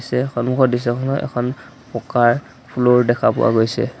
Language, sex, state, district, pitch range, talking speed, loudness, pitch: Assamese, male, Assam, Sonitpur, 120-125 Hz, 135 wpm, -18 LUFS, 125 Hz